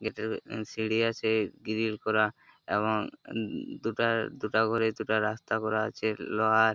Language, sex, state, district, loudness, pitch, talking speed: Bengali, male, West Bengal, Purulia, -30 LUFS, 110 Hz, 125 wpm